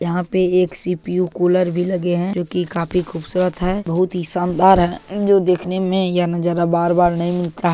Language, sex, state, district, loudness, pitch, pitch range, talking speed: Hindi, male, Bihar, Purnia, -18 LUFS, 180 Hz, 175-185 Hz, 195 wpm